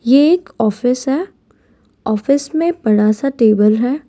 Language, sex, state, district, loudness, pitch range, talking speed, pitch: Hindi, female, Gujarat, Valsad, -15 LUFS, 215-285 Hz, 145 wpm, 255 Hz